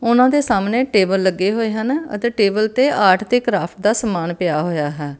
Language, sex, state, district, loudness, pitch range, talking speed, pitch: Punjabi, female, Karnataka, Bangalore, -17 LUFS, 185-240 Hz, 205 wpm, 210 Hz